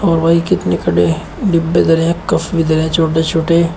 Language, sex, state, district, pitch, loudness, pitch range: Hindi, male, Uttar Pradesh, Shamli, 165 Hz, -14 LUFS, 160-170 Hz